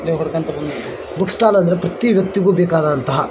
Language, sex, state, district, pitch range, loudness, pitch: Kannada, male, Karnataka, Dharwad, 155-195 Hz, -17 LUFS, 180 Hz